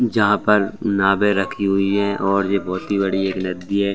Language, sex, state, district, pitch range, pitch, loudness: Hindi, male, Bihar, Saran, 95-100 Hz, 100 Hz, -19 LUFS